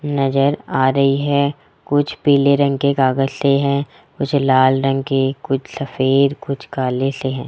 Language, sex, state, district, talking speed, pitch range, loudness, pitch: Hindi, male, Rajasthan, Jaipur, 170 wpm, 135-140 Hz, -17 LUFS, 140 Hz